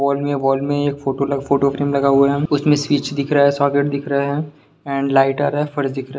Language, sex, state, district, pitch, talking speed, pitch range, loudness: Hindi, male, Bihar, Sitamarhi, 140 Hz, 260 wpm, 140-145 Hz, -18 LUFS